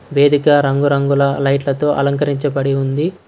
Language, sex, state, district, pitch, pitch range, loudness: Telugu, male, Karnataka, Bangalore, 140 Hz, 140-145 Hz, -15 LUFS